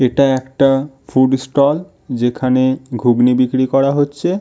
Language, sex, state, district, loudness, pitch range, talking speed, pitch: Bengali, male, West Bengal, Malda, -15 LUFS, 130-140 Hz, 125 wpm, 130 Hz